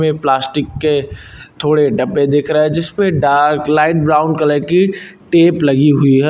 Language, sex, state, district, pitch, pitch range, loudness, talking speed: Hindi, male, Uttar Pradesh, Lucknow, 150 Hz, 145-160 Hz, -13 LUFS, 150 wpm